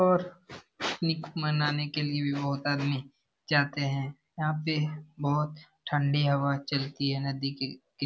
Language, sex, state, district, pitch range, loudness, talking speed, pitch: Hindi, male, Bihar, Jamui, 140-150 Hz, -30 LUFS, 155 wpm, 145 Hz